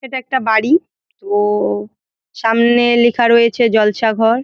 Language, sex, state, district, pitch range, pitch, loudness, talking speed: Bengali, female, West Bengal, Jalpaiguri, 215-240 Hz, 230 Hz, -14 LUFS, 135 wpm